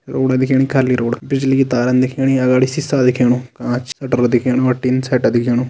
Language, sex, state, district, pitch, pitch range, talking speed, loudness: Kumaoni, male, Uttarakhand, Tehri Garhwal, 130 Hz, 125-130 Hz, 190 wpm, -16 LUFS